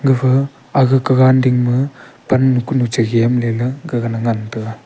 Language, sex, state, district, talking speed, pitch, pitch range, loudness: Wancho, male, Arunachal Pradesh, Longding, 185 wpm, 125 Hz, 115-130 Hz, -15 LUFS